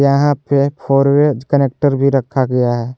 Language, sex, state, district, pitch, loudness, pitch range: Hindi, male, Jharkhand, Garhwa, 140 Hz, -14 LUFS, 130-140 Hz